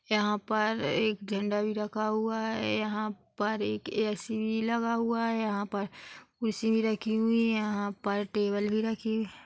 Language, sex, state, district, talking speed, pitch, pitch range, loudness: Hindi, female, Chhattisgarh, Bilaspur, 190 wpm, 215 Hz, 205-220 Hz, -30 LUFS